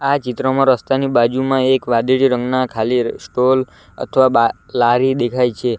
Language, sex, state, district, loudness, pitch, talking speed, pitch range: Gujarati, male, Gujarat, Valsad, -16 LUFS, 125 Hz, 145 wpm, 120-130 Hz